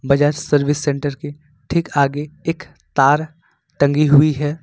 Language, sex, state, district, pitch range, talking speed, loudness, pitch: Hindi, male, Jharkhand, Ranchi, 145-155 Hz, 145 wpm, -17 LUFS, 145 Hz